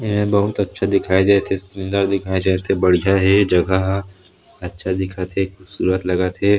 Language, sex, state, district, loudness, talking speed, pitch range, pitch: Chhattisgarhi, male, Chhattisgarh, Sarguja, -18 LUFS, 180 wpm, 95-100 Hz, 95 Hz